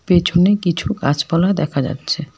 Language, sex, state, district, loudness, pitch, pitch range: Bengali, female, West Bengal, Alipurduar, -17 LUFS, 160 Hz, 140-175 Hz